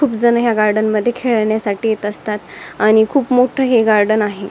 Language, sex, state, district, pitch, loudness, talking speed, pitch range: Marathi, female, Maharashtra, Dhule, 220 Hz, -15 LUFS, 185 wpm, 210-240 Hz